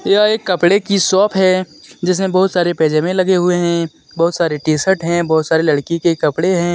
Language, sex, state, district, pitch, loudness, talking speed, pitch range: Hindi, male, Jharkhand, Deoghar, 175 Hz, -15 LUFS, 205 wpm, 165-185 Hz